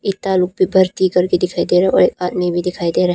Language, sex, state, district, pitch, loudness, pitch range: Hindi, female, Arunachal Pradesh, Papum Pare, 180 Hz, -16 LUFS, 180-185 Hz